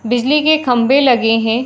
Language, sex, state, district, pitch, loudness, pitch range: Hindi, female, Uttar Pradesh, Muzaffarnagar, 245 Hz, -13 LUFS, 235-275 Hz